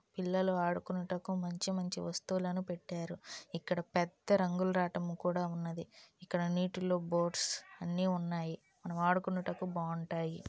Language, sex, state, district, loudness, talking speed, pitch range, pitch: Telugu, female, Andhra Pradesh, Guntur, -36 LUFS, 115 wpm, 170-185 Hz, 180 Hz